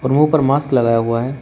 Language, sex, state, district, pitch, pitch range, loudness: Hindi, male, Uttar Pradesh, Shamli, 130 Hz, 115-140 Hz, -15 LUFS